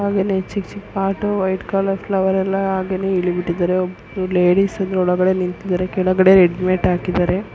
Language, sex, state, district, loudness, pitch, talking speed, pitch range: Kannada, female, Karnataka, Belgaum, -18 LUFS, 190 Hz, 175 wpm, 180-195 Hz